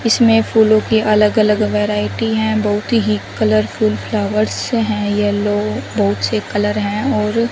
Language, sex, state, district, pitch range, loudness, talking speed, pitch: Hindi, female, Haryana, Jhajjar, 205-220 Hz, -16 LUFS, 145 wpm, 210 Hz